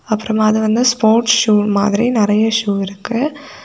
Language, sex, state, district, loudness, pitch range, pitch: Tamil, female, Tamil Nadu, Kanyakumari, -15 LUFS, 210-235 Hz, 220 Hz